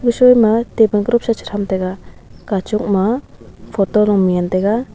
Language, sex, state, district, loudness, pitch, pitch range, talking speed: Wancho, female, Arunachal Pradesh, Longding, -16 LUFS, 210 Hz, 195-230 Hz, 155 wpm